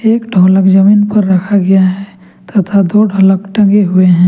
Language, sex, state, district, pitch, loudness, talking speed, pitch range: Hindi, male, Jharkhand, Ranchi, 195 Hz, -9 LUFS, 180 wpm, 185-205 Hz